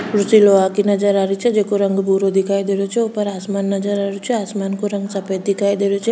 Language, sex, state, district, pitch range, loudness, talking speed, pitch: Rajasthani, female, Rajasthan, Churu, 195-205 Hz, -17 LUFS, 265 wpm, 200 Hz